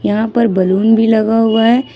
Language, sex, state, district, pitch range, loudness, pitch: Hindi, female, Jharkhand, Ranchi, 215-225 Hz, -12 LUFS, 225 Hz